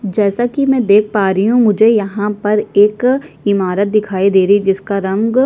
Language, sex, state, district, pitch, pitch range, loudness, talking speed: Hindi, female, Chhattisgarh, Sukma, 210 Hz, 200-220 Hz, -13 LUFS, 210 wpm